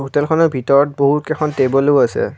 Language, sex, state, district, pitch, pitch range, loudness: Assamese, male, Assam, Kamrup Metropolitan, 145 Hz, 135-150 Hz, -15 LUFS